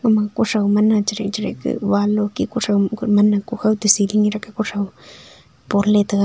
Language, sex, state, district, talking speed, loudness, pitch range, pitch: Wancho, female, Arunachal Pradesh, Longding, 165 wpm, -18 LUFS, 205-215 Hz, 210 Hz